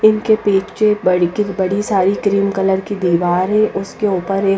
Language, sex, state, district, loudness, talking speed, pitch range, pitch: Hindi, female, Bihar, Patna, -16 LUFS, 185 wpm, 190-210 Hz, 195 Hz